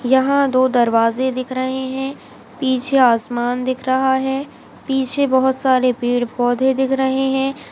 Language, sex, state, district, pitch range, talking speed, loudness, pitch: Hindi, female, Andhra Pradesh, Anantapur, 250-265 Hz, 140 wpm, -18 LUFS, 260 Hz